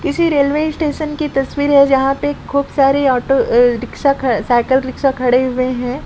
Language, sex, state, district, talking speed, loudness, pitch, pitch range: Hindi, female, Jharkhand, Sahebganj, 200 wpm, -15 LUFS, 270 Hz, 255-285 Hz